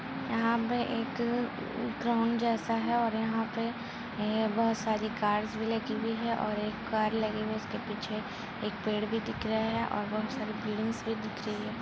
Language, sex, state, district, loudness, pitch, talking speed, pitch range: Hindi, female, Bihar, Gopalganj, -32 LUFS, 225 Hz, 200 wpm, 215-230 Hz